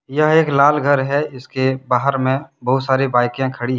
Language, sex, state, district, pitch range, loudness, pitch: Hindi, male, Jharkhand, Deoghar, 130-145 Hz, -17 LUFS, 135 Hz